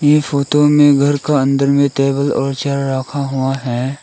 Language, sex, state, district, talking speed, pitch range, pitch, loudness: Hindi, male, Arunachal Pradesh, Lower Dibang Valley, 195 wpm, 135-145 Hz, 140 Hz, -15 LUFS